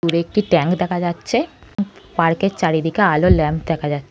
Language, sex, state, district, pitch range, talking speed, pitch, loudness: Bengali, female, West Bengal, North 24 Parganas, 160-195 Hz, 175 wpm, 175 Hz, -18 LUFS